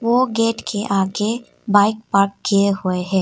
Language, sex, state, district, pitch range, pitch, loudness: Hindi, female, Arunachal Pradesh, Papum Pare, 195-225 Hz, 205 Hz, -18 LUFS